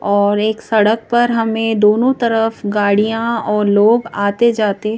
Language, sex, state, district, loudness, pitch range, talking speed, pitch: Hindi, female, Madhya Pradesh, Bhopal, -15 LUFS, 210-230 Hz, 145 wpm, 220 Hz